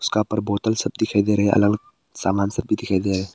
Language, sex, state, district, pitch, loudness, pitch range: Hindi, male, Arunachal Pradesh, Papum Pare, 105 Hz, -21 LUFS, 100-105 Hz